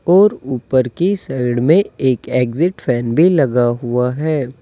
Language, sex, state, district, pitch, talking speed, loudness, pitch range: Hindi, male, Uttar Pradesh, Saharanpur, 130 Hz, 155 wpm, -16 LUFS, 125-170 Hz